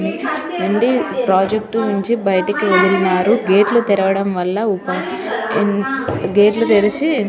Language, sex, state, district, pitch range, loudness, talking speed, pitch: Telugu, female, Telangana, Nalgonda, 190-220 Hz, -16 LUFS, 65 wpm, 205 Hz